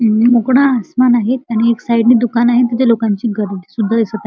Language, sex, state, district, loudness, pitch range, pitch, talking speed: Marathi, male, Maharashtra, Chandrapur, -13 LUFS, 220-245 Hz, 235 Hz, 240 wpm